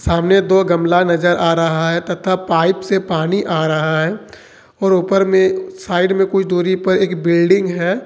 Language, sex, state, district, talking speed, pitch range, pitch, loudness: Hindi, male, Jharkhand, Ranchi, 185 wpm, 170-190 Hz, 185 Hz, -15 LUFS